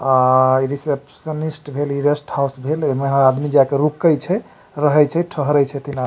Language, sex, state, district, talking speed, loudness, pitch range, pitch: Maithili, male, Bihar, Supaul, 160 wpm, -18 LUFS, 140-150 Hz, 145 Hz